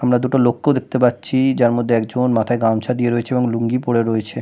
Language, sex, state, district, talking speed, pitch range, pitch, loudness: Bengali, male, West Bengal, Kolkata, 215 wpm, 115-125 Hz, 120 Hz, -17 LUFS